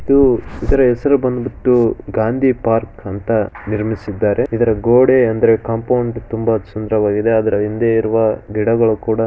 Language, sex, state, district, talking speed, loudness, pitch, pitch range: Kannada, male, Karnataka, Shimoga, 125 wpm, -16 LUFS, 115 Hz, 110-120 Hz